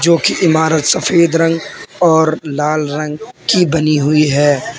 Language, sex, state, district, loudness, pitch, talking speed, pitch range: Hindi, male, Uttar Pradesh, Lalitpur, -13 LUFS, 160 Hz, 140 wpm, 150-165 Hz